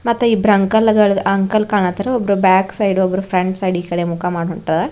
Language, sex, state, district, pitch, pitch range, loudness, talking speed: Kannada, female, Karnataka, Bidar, 195 Hz, 180-210 Hz, -16 LUFS, 195 wpm